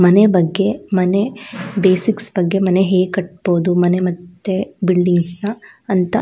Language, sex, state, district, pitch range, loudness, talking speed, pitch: Kannada, female, Karnataka, Shimoga, 180-200 Hz, -16 LUFS, 135 wpm, 185 Hz